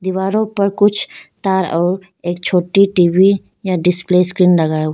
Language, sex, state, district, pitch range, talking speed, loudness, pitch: Hindi, female, Arunachal Pradesh, Lower Dibang Valley, 175-195 Hz, 160 wpm, -15 LUFS, 185 Hz